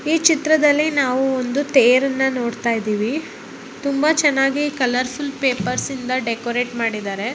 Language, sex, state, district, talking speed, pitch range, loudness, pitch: Kannada, female, Karnataka, Bellary, 120 wpm, 240-290 Hz, -19 LUFS, 265 Hz